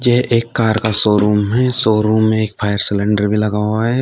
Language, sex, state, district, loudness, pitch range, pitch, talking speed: Hindi, male, Uttar Pradesh, Shamli, -15 LUFS, 105-115 Hz, 110 Hz, 255 wpm